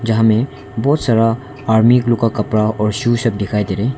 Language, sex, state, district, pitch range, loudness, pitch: Hindi, male, Arunachal Pradesh, Longding, 105-120 Hz, -16 LUFS, 115 Hz